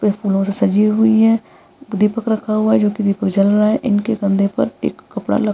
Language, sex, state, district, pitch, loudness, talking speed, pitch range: Hindi, female, Bihar, Vaishali, 210 Hz, -16 LUFS, 240 wpm, 200-220 Hz